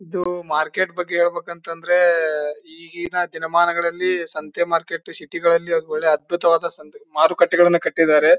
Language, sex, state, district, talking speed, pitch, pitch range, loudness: Kannada, male, Karnataka, Bijapur, 115 wpm, 170 Hz, 160-175 Hz, -19 LUFS